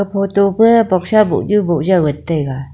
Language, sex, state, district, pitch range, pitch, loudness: Wancho, female, Arunachal Pradesh, Longding, 165-205 Hz, 195 Hz, -14 LUFS